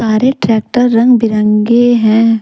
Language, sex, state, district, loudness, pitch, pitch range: Hindi, female, Jharkhand, Deoghar, -10 LUFS, 225 Hz, 215-240 Hz